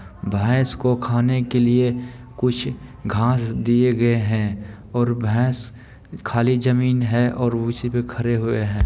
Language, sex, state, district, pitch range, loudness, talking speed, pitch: Maithili, male, Bihar, Supaul, 115-125 Hz, -20 LUFS, 140 wpm, 120 Hz